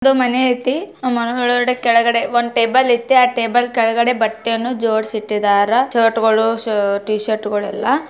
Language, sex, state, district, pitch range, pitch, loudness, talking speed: Kannada, female, Karnataka, Bijapur, 220-250 Hz, 235 Hz, -16 LUFS, 125 wpm